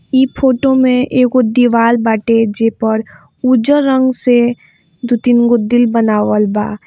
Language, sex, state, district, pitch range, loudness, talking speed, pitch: Hindi, female, Bihar, East Champaran, 220-255 Hz, -12 LUFS, 130 wpm, 240 Hz